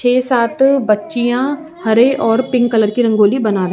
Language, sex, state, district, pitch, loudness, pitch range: Hindi, female, Uttar Pradesh, Jyotiba Phule Nagar, 240 Hz, -14 LUFS, 220-255 Hz